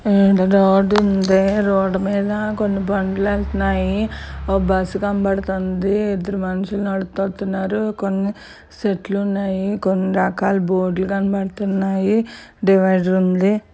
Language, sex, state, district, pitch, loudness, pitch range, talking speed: Telugu, female, Andhra Pradesh, Guntur, 195 Hz, -19 LUFS, 190-200 Hz, 110 wpm